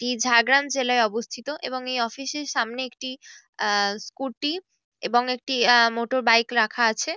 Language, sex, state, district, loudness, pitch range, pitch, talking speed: Bengali, female, West Bengal, Jhargram, -23 LUFS, 230-270 Hz, 245 Hz, 165 wpm